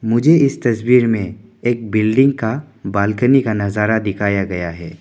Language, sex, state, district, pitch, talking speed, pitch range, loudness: Hindi, male, Arunachal Pradesh, Papum Pare, 110 Hz, 155 wpm, 100-125 Hz, -16 LUFS